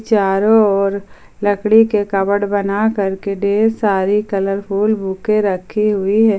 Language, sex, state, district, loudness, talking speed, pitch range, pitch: Hindi, female, Jharkhand, Ranchi, -16 LUFS, 130 wpm, 195-215 Hz, 205 Hz